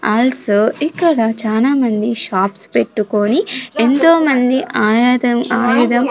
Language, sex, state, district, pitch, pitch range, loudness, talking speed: Telugu, female, Andhra Pradesh, Sri Satya Sai, 245 Hz, 220-265 Hz, -14 LUFS, 90 wpm